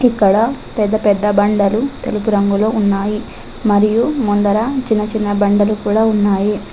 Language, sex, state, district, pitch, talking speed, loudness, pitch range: Telugu, female, Telangana, Adilabad, 210 Hz, 125 wpm, -15 LUFS, 205-220 Hz